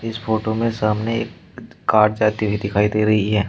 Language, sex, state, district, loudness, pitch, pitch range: Hindi, male, Uttar Pradesh, Shamli, -19 LUFS, 110 Hz, 105-110 Hz